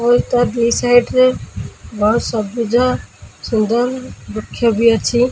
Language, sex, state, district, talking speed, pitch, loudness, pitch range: Odia, female, Odisha, Khordha, 115 wpm, 235 Hz, -15 LUFS, 220-245 Hz